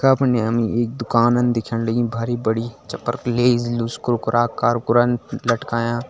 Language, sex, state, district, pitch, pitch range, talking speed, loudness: Hindi, male, Uttarakhand, Tehri Garhwal, 120 Hz, 115-120 Hz, 155 wpm, -20 LUFS